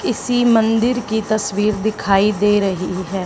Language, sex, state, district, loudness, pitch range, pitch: Hindi, female, Haryana, Charkhi Dadri, -17 LUFS, 195-220 Hz, 210 Hz